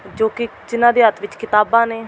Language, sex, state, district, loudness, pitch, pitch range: Punjabi, female, Delhi, New Delhi, -16 LUFS, 225 Hz, 210-235 Hz